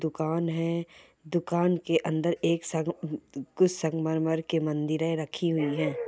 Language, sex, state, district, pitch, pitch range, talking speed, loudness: Hindi, female, Bihar, Jamui, 160 Hz, 160-170 Hz, 140 wpm, -28 LUFS